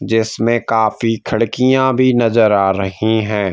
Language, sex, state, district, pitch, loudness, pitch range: Hindi, male, Madhya Pradesh, Bhopal, 115 Hz, -15 LUFS, 105-120 Hz